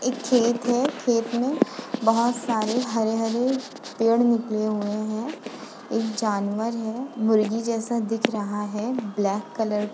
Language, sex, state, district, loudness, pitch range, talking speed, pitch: Hindi, female, Uttar Pradesh, Muzaffarnagar, -24 LUFS, 215-245 Hz, 140 wpm, 230 Hz